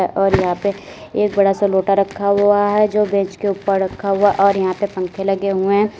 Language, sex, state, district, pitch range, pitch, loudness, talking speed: Hindi, female, Uttar Pradesh, Lalitpur, 195-205 Hz, 200 Hz, -17 LUFS, 240 wpm